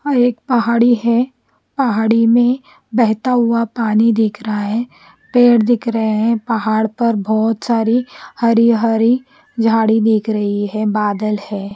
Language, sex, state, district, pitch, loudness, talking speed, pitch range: Hindi, female, Chandigarh, Chandigarh, 230 Hz, -15 LUFS, 145 wpm, 220-240 Hz